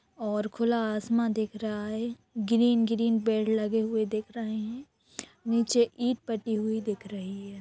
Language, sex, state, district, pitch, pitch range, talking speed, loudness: Hindi, female, Bihar, Gopalganj, 220 Hz, 215-230 Hz, 165 wpm, -29 LUFS